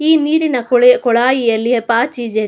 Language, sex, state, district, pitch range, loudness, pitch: Kannada, female, Karnataka, Mysore, 235-265 Hz, -13 LUFS, 245 Hz